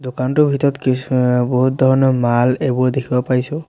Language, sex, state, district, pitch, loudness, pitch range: Assamese, male, Assam, Sonitpur, 130 Hz, -16 LUFS, 125-135 Hz